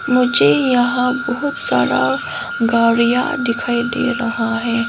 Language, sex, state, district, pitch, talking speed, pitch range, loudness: Hindi, female, Arunachal Pradesh, Lower Dibang Valley, 235 Hz, 110 wpm, 235-250 Hz, -16 LUFS